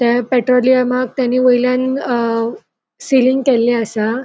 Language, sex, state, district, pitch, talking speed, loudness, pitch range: Konkani, female, Goa, North and South Goa, 250 Hz, 110 wpm, -15 LUFS, 240-255 Hz